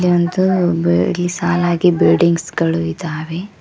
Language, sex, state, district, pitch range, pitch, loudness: Kannada, male, Karnataka, Koppal, 160-180 Hz, 175 Hz, -16 LUFS